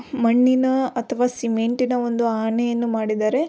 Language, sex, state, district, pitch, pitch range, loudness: Kannada, female, Karnataka, Belgaum, 240 Hz, 230-250 Hz, -21 LUFS